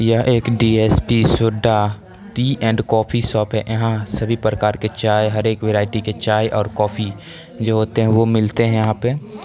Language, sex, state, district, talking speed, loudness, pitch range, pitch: Hindi, male, Bihar, Darbhanga, 180 wpm, -18 LUFS, 105-115 Hz, 110 Hz